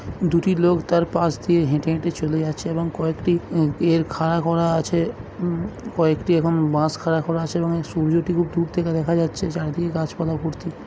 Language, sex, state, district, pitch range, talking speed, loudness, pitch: Bengali, male, West Bengal, Malda, 160-170 Hz, 185 wpm, -22 LUFS, 165 Hz